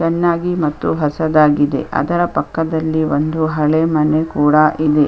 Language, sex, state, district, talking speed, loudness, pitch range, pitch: Kannada, female, Karnataka, Chamarajanagar, 130 wpm, -16 LUFS, 150-160 Hz, 155 Hz